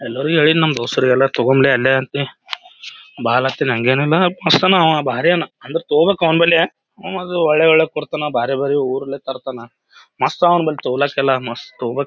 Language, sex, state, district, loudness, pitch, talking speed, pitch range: Kannada, male, Karnataka, Gulbarga, -16 LUFS, 150 Hz, 165 wpm, 135-170 Hz